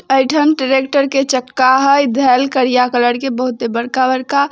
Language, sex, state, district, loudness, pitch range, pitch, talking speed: Hindi, female, Bihar, Darbhanga, -14 LUFS, 255-275 Hz, 260 Hz, 170 wpm